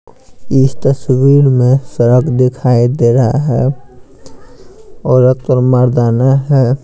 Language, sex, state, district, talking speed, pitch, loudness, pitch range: Hindi, male, Bihar, Patna, 105 wpm, 130 Hz, -11 LUFS, 125-135 Hz